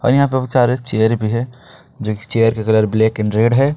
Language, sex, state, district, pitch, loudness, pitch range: Hindi, male, Jharkhand, Ranchi, 115 Hz, -16 LUFS, 110-125 Hz